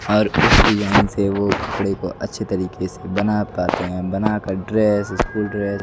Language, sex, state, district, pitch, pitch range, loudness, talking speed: Hindi, male, Odisha, Nuapada, 100 Hz, 95-105 Hz, -19 LUFS, 185 wpm